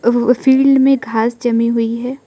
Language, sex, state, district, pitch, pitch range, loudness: Hindi, female, Arunachal Pradesh, Lower Dibang Valley, 240 Hz, 230-265 Hz, -14 LUFS